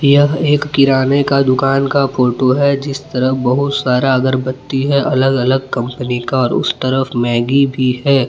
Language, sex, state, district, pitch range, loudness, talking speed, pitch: Hindi, male, Jharkhand, Palamu, 130-140 Hz, -14 LUFS, 175 wpm, 135 Hz